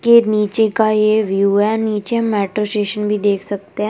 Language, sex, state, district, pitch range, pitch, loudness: Hindi, female, Delhi, New Delhi, 205-220 Hz, 210 Hz, -16 LUFS